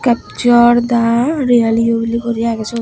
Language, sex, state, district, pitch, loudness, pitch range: Chakma, female, Tripura, Unakoti, 235 Hz, -13 LUFS, 230-240 Hz